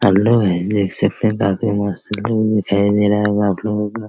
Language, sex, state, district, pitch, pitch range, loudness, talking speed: Hindi, male, Bihar, Araria, 105 Hz, 100-105 Hz, -17 LUFS, 220 wpm